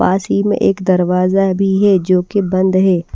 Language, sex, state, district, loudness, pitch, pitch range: Hindi, female, Maharashtra, Washim, -14 LUFS, 185 Hz, 180-195 Hz